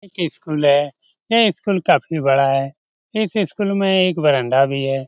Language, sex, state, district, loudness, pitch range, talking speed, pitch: Hindi, male, Bihar, Lakhisarai, -18 LUFS, 135-195 Hz, 175 wpm, 160 Hz